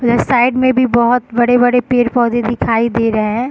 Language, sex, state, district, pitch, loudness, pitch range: Hindi, female, Bihar, East Champaran, 240 Hz, -13 LUFS, 235-245 Hz